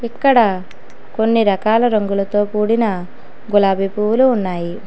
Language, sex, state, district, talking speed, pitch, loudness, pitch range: Telugu, female, Telangana, Hyderabad, 100 wpm, 210 Hz, -16 LUFS, 195-230 Hz